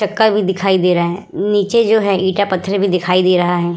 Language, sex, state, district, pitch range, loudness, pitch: Hindi, female, Uttar Pradesh, Budaun, 180-205 Hz, -15 LUFS, 190 Hz